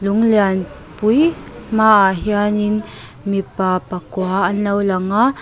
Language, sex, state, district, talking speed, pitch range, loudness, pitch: Mizo, female, Mizoram, Aizawl, 110 wpm, 190-215 Hz, -17 LUFS, 200 Hz